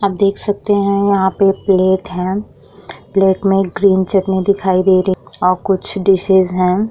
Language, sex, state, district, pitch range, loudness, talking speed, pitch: Hindi, female, Uttar Pradesh, Muzaffarnagar, 185-200 Hz, -14 LUFS, 165 wpm, 195 Hz